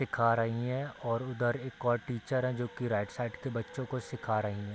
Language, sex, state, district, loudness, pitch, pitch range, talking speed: Hindi, male, Bihar, Gopalganj, -34 LUFS, 120 Hz, 115-130 Hz, 240 wpm